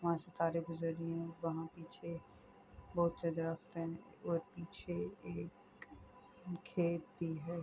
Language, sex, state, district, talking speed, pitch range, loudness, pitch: Urdu, female, Andhra Pradesh, Anantapur, 150 wpm, 165-170 Hz, -42 LUFS, 165 Hz